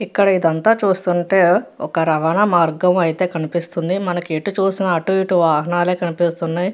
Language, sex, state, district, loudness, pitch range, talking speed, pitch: Telugu, female, Andhra Pradesh, Guntur, -17 LUFS, 165-190 Hz, 70 wpm, 175 Hz